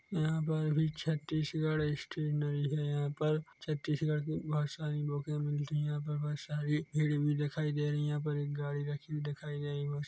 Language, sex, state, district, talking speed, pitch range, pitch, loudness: Hindi, male, Chhattisgarh, Korba, 200 wpm, 145-155 Hz, 150 Hz, -35 LUFS